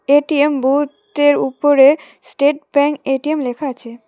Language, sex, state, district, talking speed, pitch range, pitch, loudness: Bengali, female, West Bengal, Cooch Behar, 120 wpm, 270-295 Hz, 285 Hz, -15 LUFS